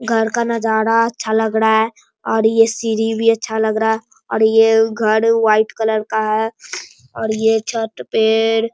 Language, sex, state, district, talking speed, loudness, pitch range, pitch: Hindi, male, Bihar, Bhagalpur, 180 wpm, -16 LUFS, 220-225 Hz, 220 Hz